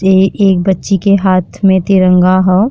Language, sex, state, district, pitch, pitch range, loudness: Bhojpuri, female, Uttar Pradesh, Deoria, 190 Hz, 185-195 Hz, -10 LUFS